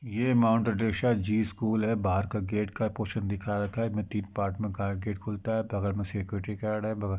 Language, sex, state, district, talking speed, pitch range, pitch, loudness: Hindi, male, Uttar Pradesh, Muzaffarnagar, 225 wpm, 100-110 Hz, 105 Hz, -30 LUFS